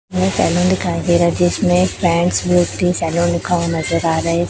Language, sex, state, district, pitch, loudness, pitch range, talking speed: Hindi, male, Chhattisgarh, Raipur, 175 Hz, -16 LUFS, 170-180 Hz, 200 wpm